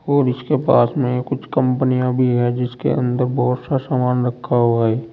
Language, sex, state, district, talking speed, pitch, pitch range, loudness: Hindi, male, Uttar Pradesh, Saharanpur, 185 wpm, 125 Hz, 125-130 Hz, -18 LUFS